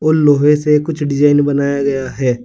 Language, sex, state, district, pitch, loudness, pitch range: Hindi, male, Uttar Pradesh, Saharanpur, 145 Hz, -14 LUFS, 140-150 Hz